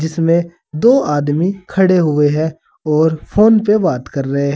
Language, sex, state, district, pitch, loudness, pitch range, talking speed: Hindi, male, Uttar Pradesh, Saharanpur, 160 Hz, -14 LUFS, 150-190 Hz, 160 wpm